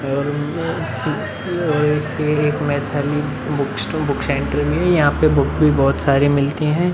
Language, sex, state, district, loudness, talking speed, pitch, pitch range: Hindi, male, Uttar Pradesh, Muzaffarnagar, -18 LUFS, 175 wpm, 150 Hz, 140-155 Hz